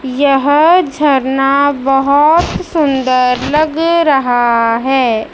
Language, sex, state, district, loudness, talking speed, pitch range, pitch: Hindi, female, Madhya Pradesh, Dhar, -11 LUFS, 80 wpm, 260-300 Hz, 275 Hz